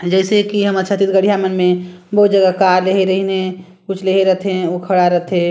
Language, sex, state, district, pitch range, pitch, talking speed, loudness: Chhattisgarhi, male, Chhattisgarh, Sarguja, 180-195 Hz, 190 Hz, 195 wpm, -15 LUFS